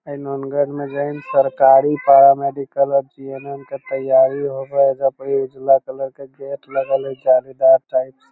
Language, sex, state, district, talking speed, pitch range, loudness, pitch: Magahi, male, Bihar, Lakhisarai, 200 wpm, 135-140 Hz, -17 LUFS, 135 Hz